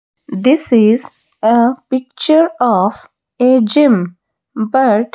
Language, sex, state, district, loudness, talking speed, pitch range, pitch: English, female, Odisha, Malkangiri, -13 LUFS, 95 wpm, 220-265 Hz, 245 Hz